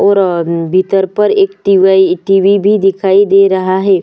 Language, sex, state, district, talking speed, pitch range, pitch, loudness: Hindi, female, Chhattisgarh, Sukma, 180 wpm, 185-200 Hz, 195 Hz, -10 LUFS